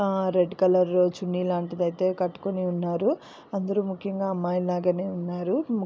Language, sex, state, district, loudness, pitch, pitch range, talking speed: Telugu, female, Andhra Pradesh, Visakhapatnam, -26 LUFS, 180 Hz, 180-195 Hz, 125 wpm